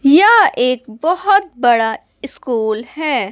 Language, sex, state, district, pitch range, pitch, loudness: Hindi, female, Bihar, West Champaran, 235-345 Hz, 255 Hz, -14 LUFS